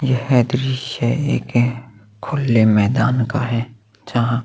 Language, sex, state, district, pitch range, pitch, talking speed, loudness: Hindi, male, Chhattisgarh, Sukma, 115-125 Hz, 120 Hz, 110 wpm, -18 LUFS